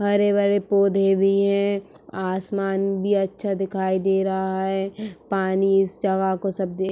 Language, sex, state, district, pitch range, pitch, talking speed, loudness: Hindi, female, Uttar Pradesh, Etah, 190-200 Hz, 195 Hz, 165 wpm, -22 LUFS